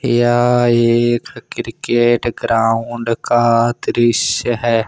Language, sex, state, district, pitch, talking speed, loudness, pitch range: Hindi, male, Jharkhand, Ranchi, 120 Hz, 85 wpm, -15 LUFS, 115-120 Hz